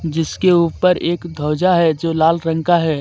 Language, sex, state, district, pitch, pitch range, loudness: Hindi, male, Jharkhand, Deoghar, 165 Hz, 160-175 Hz, -16 LUFS